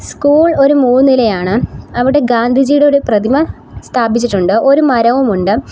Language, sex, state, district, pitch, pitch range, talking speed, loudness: Malayalam, female, Kerala, Kollam, 255 Hz, 230-280 Hz, 105 wpm, -11 LUFS